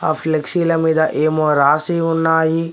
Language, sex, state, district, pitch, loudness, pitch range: Telugu, male, Telangana, Mahabubabad, 160 Hz, -16 LUFS, 155-165 Hz